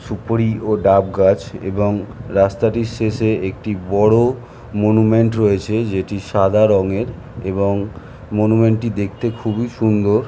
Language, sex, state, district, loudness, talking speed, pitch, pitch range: Bengali, male, West Bengal, North 24 Parganas, -17 LUFS, 125 wpm, 105 Hz, 100-115 Hz